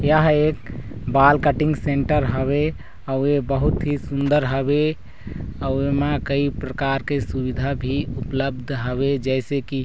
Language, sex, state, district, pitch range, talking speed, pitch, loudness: Chhattisgarhi, male, Chhattisgarh, Raigarh, 130-145 Hz, 130 wpm, 140 Hz, -21 LUFS